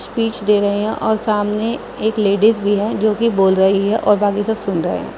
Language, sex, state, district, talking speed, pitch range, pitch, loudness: Hindi, female, Uttar Pradesh, Muzaffarnagar, 230 wpm, 205-220 Hz, 210 Hz, -16 LUFS